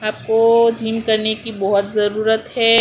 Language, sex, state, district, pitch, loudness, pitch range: Hindi, female, Gujarat, Gandhinagar, 220 Hz, -17 LUFS, 215-230 Hz